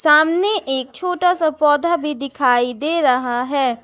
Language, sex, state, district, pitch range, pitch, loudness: Hindi, female, Jharkhand, Ranchi, 255-335 Hz, 295 Hz, -17 LUFS